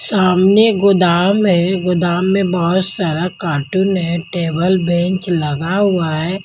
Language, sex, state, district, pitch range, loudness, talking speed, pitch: Hindi, female, Haryana, Jhajjar, 170-190 Hz, -15 LUFS, 130 wpm, 180 Hz